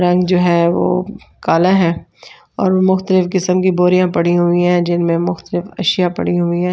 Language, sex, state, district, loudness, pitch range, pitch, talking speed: Hindi, female, Delhi, New Delhi, -15 LUFS, 175-185 Hz, 180 Hz, 180 wpm